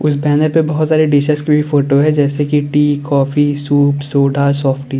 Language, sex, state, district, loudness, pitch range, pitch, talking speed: Hindi, male, Uttar Pradesh, Lalitpur, -13 LUFS, 140-150 Hz, 145 Hz, 215 wpm